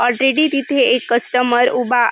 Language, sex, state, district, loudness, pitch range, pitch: Marathi, female, Maharashtra, Dhule, -15 LUFS, 245-265 Hz, 245 Hz